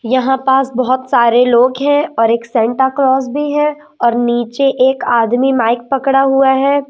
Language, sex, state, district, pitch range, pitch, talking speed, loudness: Hindi, female, Madhya Pradesh, Umaria, 240-270 Hz, 260 Hz, 175 wpm, -13 LUFS